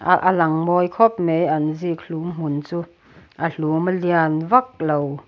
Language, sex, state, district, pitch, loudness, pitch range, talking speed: Mizo, female, Mizoram, Aizawl, 165 Hz, -20 LUFS, 155-175 Hz, 160 wpm